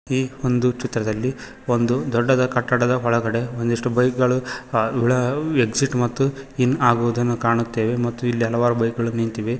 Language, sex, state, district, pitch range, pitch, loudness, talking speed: Kannada, male, Karnataka, Koppal, 115-125 Hz, 120 Hz, -21 LUFS, 150 wpm